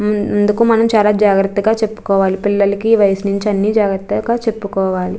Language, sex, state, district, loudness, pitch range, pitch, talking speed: Telugu, female, Andhra Pradesh, Chittoor, -14 LUFS, 200-220 Hz, 205 Hz, 140 wpm